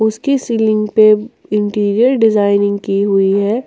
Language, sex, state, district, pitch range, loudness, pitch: Hindi, female, Jharkhand, Ranchi, 200-225 Hz, -13 LUFS, 215 Hz